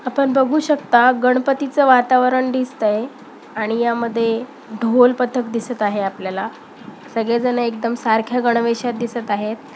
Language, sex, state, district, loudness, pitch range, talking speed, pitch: Marathi, female, Maharashtra, Pune, -18 LUFS, 230-255 Hz, 115 wpm, 245 Hz